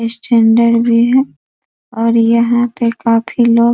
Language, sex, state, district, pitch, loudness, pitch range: Hindi, female, Bihar, East Champaran, 235 Hz, -12 LUFS, 230-235 Hz